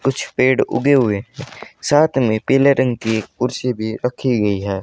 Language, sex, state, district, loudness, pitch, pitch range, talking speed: Hindi, male, Haryana, Charkhi Dadri, -17 LUFS, 125 Hz, 110-135 Hz, 175 wpm